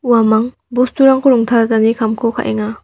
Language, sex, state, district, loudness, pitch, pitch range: Garo, female, Meghalaya, West Garo Hills, -13 LUFS, 230 Hz, 225-250 Hz